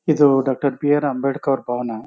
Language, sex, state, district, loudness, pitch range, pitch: Kannada, male, Karnataka, Chamarajanagar, -19 LUFS, 130-145 Hz, 135 Hz